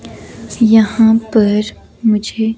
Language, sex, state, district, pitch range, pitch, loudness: Hindi, female, Himachal Pradesh, Shimla, 215-225 Hz, 220 Hz, -13 LUFS